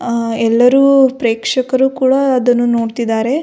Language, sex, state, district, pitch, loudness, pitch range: Kannada, female, Karnataka, Belgaum, 245 Hz, -13 LUFS, 230-265 Hz